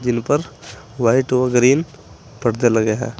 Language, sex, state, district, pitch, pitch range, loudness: Hindi, male, Uttar Pradesh, Saharanpur, 120 Hz, 115-130 Hz, -18 LUFS